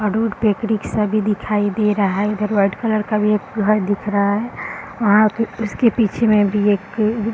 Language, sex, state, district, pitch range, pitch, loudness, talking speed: Hindi, female, Bihar, Araria, 205-220 Hz, 210 Hz, -18 LUFS, 245 wpm